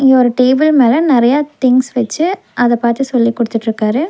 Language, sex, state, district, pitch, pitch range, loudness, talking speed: Tamil, female, Tamil Nadu, Nilgiris, 255 Hz, 235-280 Hz, -13 LUFS, 160 wpm